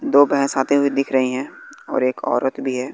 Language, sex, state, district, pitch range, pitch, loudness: Hindi, male, Bihar, West Champaran, 130-140 Hz, 135 Hz, -19 LUFS